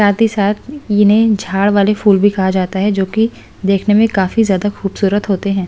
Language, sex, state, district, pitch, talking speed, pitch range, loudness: Hindi, female, Delhi, New Delhi, 205 Hz, 210 wpm, 195-210 Hz, -14 LUFS